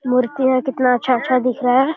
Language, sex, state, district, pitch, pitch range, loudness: Hindi, male, Bihar, Jamui, 255 Hz, 250-260 Hz, -17 LUFS